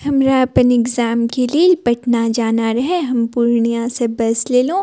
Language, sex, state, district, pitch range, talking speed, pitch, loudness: Maithili, female, Bihar, Purnia, 235-260 Hz, 175 wpm, 240 Hz, -16 LUFS